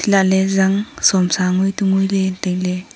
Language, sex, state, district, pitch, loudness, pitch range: Wancho, female, Arunachal Pradesh, Longding, 190 Hz, -17 LUFS, 185-195 Hz